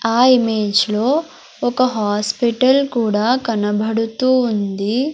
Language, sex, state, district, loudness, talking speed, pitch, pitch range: Telugu, female, Andhra Pradesh, Sri Satya Sai, -17 LUFS, 95 wpm, 230 Hz, 210-255 Hz